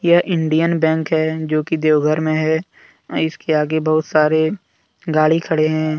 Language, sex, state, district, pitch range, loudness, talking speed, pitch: Hindi, male, Jharkhand, Deoghar, 155-160 Hz, -17 LUFS, 160 wpm, 160 Hz